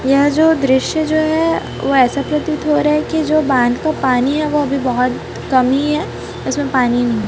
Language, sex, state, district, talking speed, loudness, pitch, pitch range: Hindi, female, Chhattisgarh, Raipur, 225 wpm, -15 LUFS, 285 Hz, 260-305 Hz